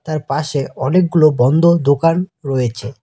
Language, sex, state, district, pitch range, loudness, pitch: Bengali, male, West Bengal, Cooch Behar, 135-165 Hz, -15 LUFS, 150 Hz